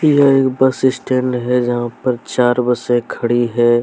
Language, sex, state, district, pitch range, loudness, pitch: Hindi, male, Jharkhand, Deoghar, 120-130 Hz, -16 LUFS, 125 Hz